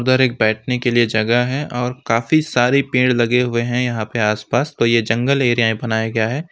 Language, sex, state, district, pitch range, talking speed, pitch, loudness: Hindi, male, West Bengal, Alipurduar, 115-130 Hz, 230 wpm, 120 Hz, -17 LUFS